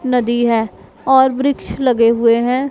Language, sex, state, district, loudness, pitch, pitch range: Hindi, female, Punjab, Pathankot, -14 LUFS, 245 Hz, 235-265 Hz